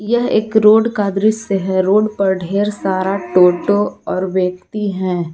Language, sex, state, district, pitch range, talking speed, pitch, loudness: Hindi, female, Jharkhand, Garhwa, 185-210 Hz, 155 wpm, 195 Hz, -15 LUFS